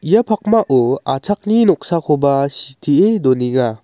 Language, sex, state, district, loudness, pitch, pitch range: Garo, male, Meghalaya, West Garo Hills, -15 LUFS, 150 Hz, 135-215 Hz